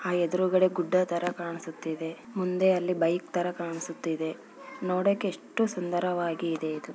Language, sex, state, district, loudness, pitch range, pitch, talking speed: Kannada, female, Karnataka, Bellary, -29 LUFS, 165-185 Hz, 175 Hz, 120 wpm